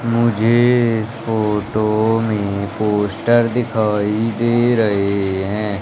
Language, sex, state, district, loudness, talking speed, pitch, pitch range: Hindi, male, Madhya Pradesh, Umaria, -17 LUFS, 95 wpm, 110 Hz, 105-115 Hz